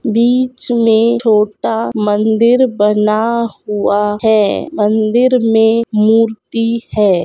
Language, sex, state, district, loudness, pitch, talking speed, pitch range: Hindi, female, Bihar, Purnia, -13 LUFS, 225 Hz, 90 wpm, 210-235 Hz